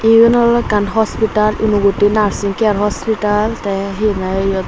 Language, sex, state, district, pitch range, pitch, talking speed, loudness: Chakma, female, Tripura, Unakoti, 200-220 Hz, 210 Hz, 155 wpm, -14 LUFS